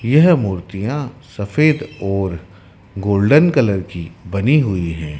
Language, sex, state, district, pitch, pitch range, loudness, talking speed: Hindi, male, Madhya Pradesh, Dhar, 100 Hz, 95-140 Hz, -17 LUFS, 115 wpm